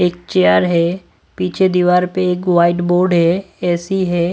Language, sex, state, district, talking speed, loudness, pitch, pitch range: Hindi, male, Punjab, Pathankot, 165 wpm, -15 LUFS, 180 Hz, 170-180 Hz